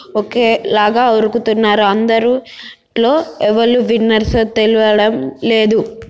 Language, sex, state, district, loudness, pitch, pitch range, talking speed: Telugu, female, Telangana, Nalgonda, -13 LUFS, 220 Hz, 215-230 Hz, 90 wpm